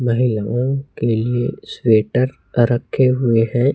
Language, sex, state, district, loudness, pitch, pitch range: Hindi, male, Chhattisgarh, Raipur, -18 LUFS, 120 Hz, 115-125 Hz